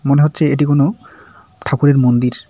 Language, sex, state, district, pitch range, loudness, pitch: Bengali, male, West Bengal, Cooch Behar, 125-145 Hz, -14 LUFS, 140 Hz